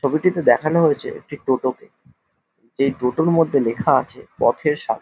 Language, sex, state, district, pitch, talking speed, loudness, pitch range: Bengali, male, West Bengal, Jhargram, 140 Hz, 145 wpm, -19 LUFS, 125-160 Hz